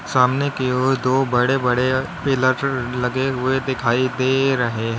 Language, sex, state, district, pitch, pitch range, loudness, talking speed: Hindi, male, Uttar Pradesh, Lalitpur, 130 Hz, 125-135 Hz, -19 LUFS, 155 wpm